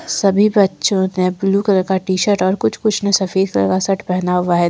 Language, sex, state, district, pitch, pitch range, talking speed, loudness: Hindi, female, Jharkhand, Ranchi, 190 Hz, 185-200 Hz, 230 wpm, -16 LUFS